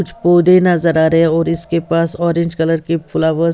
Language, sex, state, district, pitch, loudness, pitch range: Hindi, female, Bihar, West Champaran, 165 Hz, -14 LUFS, 165-170 Hz